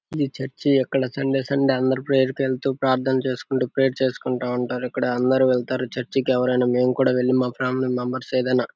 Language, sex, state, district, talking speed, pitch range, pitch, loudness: Telugu, male, Andhra Pradesh, Guntur, 185 wpm, 125-135 Hz, 130 Hz, -22 LUFS